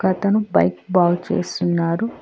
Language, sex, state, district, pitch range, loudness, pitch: Telugu, female, Telangana, Hyderabad, 175-205 Hz, -19 LUFS, 185 Hz